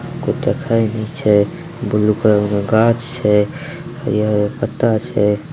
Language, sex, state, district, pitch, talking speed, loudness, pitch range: Maithili, male, Bihar, Samastipur, 110 Hz, 130 wpm, -17 LUFS, 105-150 Hz